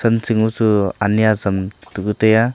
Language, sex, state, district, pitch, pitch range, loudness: Wancho, male, Arunachal Pradesh, Longding, 110 Hz, 100-110 Hz, -17 LUFS